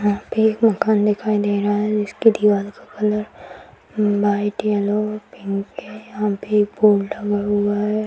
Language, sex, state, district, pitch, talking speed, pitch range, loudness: Hindi, female, Bihar, Bhagalpur, 210 Hz, 170 wpm, 205-215 Hz, -19 LUFS